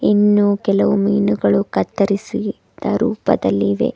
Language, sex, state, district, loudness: Kannada, female, Karnataka, Bidar, -17 LUFS